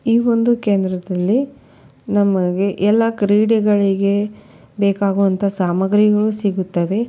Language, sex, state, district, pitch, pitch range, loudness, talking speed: Kannada, female, Karnataka, Belgaum, 200 Hz, 190-210 Hz, -17 LUFS, 75 wpm